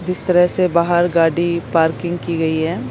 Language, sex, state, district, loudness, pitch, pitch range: Hindi, female, Chandigarh, Chandigarh, -17 LUFS, 170 Hz, 165-175 Hz